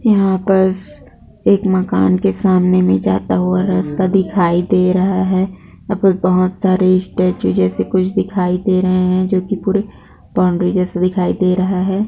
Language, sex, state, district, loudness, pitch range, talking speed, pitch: Hindi, female, Bihar, Kishanganj, -15 LUFS, 180-190 Hz, 170 wpm, 185 Hz